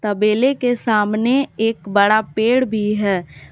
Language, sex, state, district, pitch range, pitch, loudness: Hindi, female, Jharkhand, Palamu, 205-240 Hz, 215 Hz, -17 LUFS